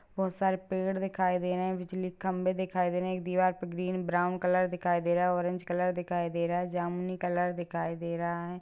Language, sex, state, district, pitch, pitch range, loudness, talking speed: Hindi, female, Bihar, Gaya, 180 Hz, 175-185 Hz, -31 LUFS, 260 wpm